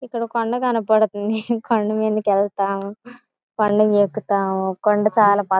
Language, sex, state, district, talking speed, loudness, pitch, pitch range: Telugu, female, Andhra Pradesh, Guntur, 130 wpm, -19 LUFS, 215 Hz, 200-230 Hz